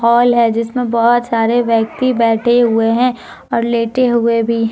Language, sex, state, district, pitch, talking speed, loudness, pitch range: Hindi, female, Jharkhand, Deoghar, 235 Hz, 175 wpm, -14 LUFS, 230-240 Hz